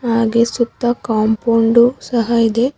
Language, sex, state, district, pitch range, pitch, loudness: Kannada, female, Karnataka, Bangalore, 225-240 Hz, 235 Hz, -15 LUFS